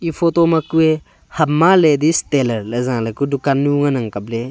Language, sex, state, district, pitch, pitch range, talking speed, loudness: Wancho, male, Arunachal Pradesh, Longding, 145 Hz, 125-160 Hz, 170 wpm, -16 LUFS